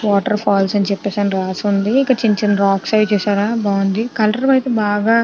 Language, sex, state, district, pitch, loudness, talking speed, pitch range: Telugu, female, Andhra Pradesh, Chittoor, 205 Hz, -16 LUFS, 205 wpm, 200-220 Hz